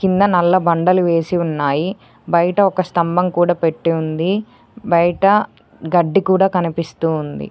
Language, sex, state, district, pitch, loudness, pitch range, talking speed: Telugu, female, Telangana, Mahabubabad, 175 Hz, -16 LUFS, 165-185 Hz, 130 wpm